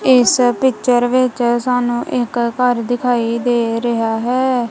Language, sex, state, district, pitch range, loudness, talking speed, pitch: Punjabi, female, Punjab, Kapurthala, 235-250 Hz, -16 LUFS, 125 wpm, 245 Hz